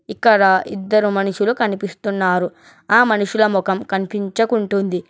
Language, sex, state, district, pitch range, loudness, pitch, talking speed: Telugu, male, Telangana, Hyderabad, 190-215 Hz, -17 LUFS, 200 Hz, 95 wpm